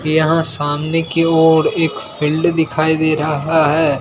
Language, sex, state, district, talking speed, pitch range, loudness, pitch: Hindi, male, Bihar, Katihar, 150 wpm, 155-165 Hz, -15 LUFS, 160 Hz